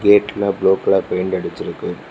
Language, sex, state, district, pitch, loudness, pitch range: Tamil, male, Tamil Nadu, Kanyakumari, 100 Hz, -18 LUFS, 95-100 Hz